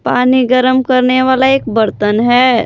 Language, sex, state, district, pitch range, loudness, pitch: Hindi, female, Jharkhand, Palamu, 240-260 Hz, -11 LUFS, 255 Hz